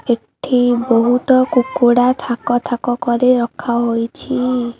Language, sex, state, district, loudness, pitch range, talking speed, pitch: Odia, female, Odisha, Khordha, -16 LUFS, 240-250 Hz, 100 wpm, 245 Hz